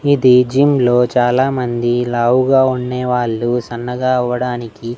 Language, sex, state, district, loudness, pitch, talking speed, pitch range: Telugu, male, Andhra Pradesh, Annamaya, -15 LUFS, 125 Hz, 95 wpm, 120-130 Hz